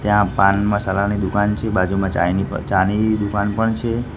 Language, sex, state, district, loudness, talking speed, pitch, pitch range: Gujarati, male, Gujarat, Gandhinagar, -19 LUFS, 160 wpm, 100 Hz, 95-105 Hz